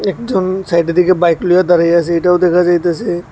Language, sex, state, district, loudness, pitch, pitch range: Bengali, male, Tripura, West Tripura, -13 LUFS, 175 Hz, 170-185 Hz